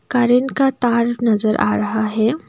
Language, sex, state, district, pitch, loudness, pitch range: Hindi, female, Assam, Kamrup Metropolitan, 235 Hz, -17 LUFS, 215-245 Hz